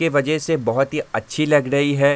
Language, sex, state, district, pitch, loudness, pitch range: Hindi, male, Bihar, Kishanganj, 145 Hz, -19 LUFS, 140-155 Hz